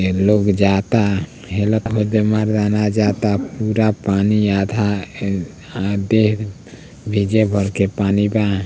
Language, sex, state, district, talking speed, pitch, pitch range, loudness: Bhojpuri, male, Bihar, Gopalganj, 105 wpm, 105 Hz, 100-110 Hz, -18 LUFS